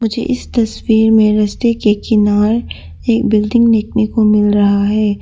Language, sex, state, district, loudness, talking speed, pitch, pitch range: Hindi, female, Arunachal Pradesh, Papum Pare, -13 LUFS, 160 wpm, 215 Hz, 210-230 Hz